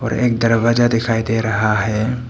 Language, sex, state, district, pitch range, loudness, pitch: Hindi, male, Arunachal Pradesh, Papum Pare, 110-120 Hz, -17 LUFS, 115 Hz